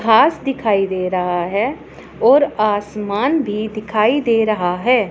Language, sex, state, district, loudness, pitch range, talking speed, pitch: Hindi, female, Punjab, Pathankot, -17 LUFS, 205-250 Hz, 140 wpm, 215 Hz